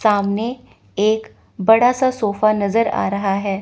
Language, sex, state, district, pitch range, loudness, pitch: Hindi, female, Chandigarh, Chandigarh, 200-230 Hz, -18 LUFS, 215 Hz